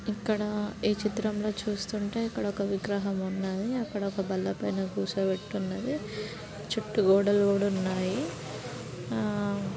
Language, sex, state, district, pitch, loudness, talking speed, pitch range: Telugu, female, Telangana, Karimnagar, 200 Hz, -30 LUFS, 115 wpm, 190-210 Hz